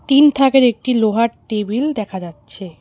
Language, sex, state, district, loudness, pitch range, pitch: Bengali, female, West Bengal, Alipurduar, -16 LUFS, 200-270 Hz, 230 Hz